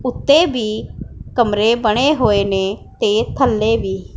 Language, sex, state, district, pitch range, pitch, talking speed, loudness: Punjabi, female, Punjab, Pathankot, 205-265 Hz, 225 Hz, 130 wpm, -16 LUFS